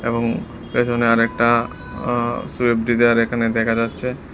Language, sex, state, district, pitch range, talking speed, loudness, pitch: Bengali, male, Tripura, West Tripura, 115-120 Hz, 125 wpm, -19 LUFS, 120 Hz